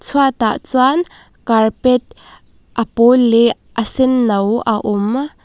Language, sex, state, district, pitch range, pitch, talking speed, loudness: Mizo, female, Mizoram, Aizawl, 225-260 Hz, 235 Hz, 130 wpm, -15 LUFS